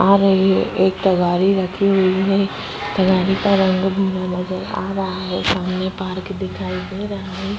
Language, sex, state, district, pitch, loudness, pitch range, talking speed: Hindi, female, Uttar Pradesh, Hamirpur, 190 Hz, -19 LUFS, 185-195 Hz, 165 wpm